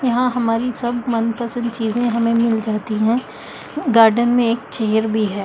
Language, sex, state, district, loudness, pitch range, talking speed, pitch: Hindi, female, Delhi, New Delhi, -18 LUFS, 220-240 Hz, 165 wpm, 230 Hz